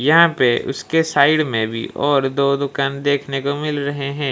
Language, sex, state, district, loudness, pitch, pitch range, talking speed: Hindi, male, Odisha, Malkangiri, -18 LUFS, 140 Hz, 135-145 Hz, 195 wpm